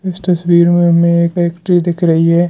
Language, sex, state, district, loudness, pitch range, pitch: Hindi, male, Bihar, Madhepura, -12 LUFS, 170-175 Hz, 170 Hz